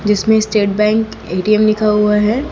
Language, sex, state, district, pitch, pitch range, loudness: Hindi, female, Chhattisgarh, Raipur, 215 Hz, 210-220 Hz, -14 LUFS